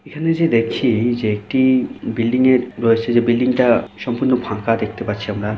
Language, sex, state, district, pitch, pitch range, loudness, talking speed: Bengali, male, West Bengal, Kolkata, 120 Hz, 110-130 Hz, -17 LUFS, 170 wpm